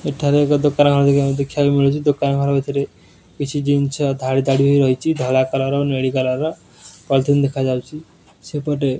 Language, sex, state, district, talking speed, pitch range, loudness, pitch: Odia, male, Odisha, Nuapada, 160 wpm, 135-145 Hz, -18 LUFS, 140 Hz